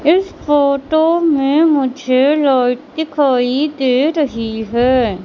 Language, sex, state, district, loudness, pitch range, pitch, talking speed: Hindi, male, Madhya Pradesh, Katni, -14 LUFS, 255-300 Hz, 280 Hz, 105 wpm